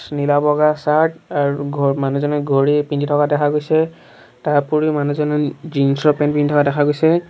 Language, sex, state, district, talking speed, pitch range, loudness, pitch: Assamese, male, Assam, Sonitpur, 170 wpm, 145-150 Hz, -17 LUFS, 145 Hz